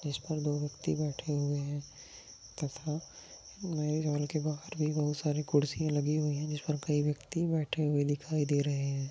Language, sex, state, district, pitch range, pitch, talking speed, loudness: Hindi, male, Maharashtra, Nagpur, 145-155 Hz, 150 Hz, 185 wpm, -33 LUFS